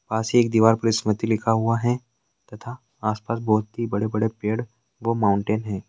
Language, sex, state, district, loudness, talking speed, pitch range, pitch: Hindi, male, Rajasthan, Nagaur, -23 LUFS, 195 wpm, 110-115 Hz, 110 Hz